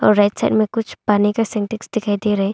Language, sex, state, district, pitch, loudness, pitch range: Hindi, female, Arunachal Pradesh, Longding, 210 Hz, -18 LUFS, 205-220 Hz